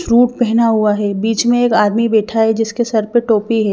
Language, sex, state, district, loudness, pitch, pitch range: Hindi, female, Haryana, Jhajjar, -14 LUFS, 225 Hz, 220-235 Hz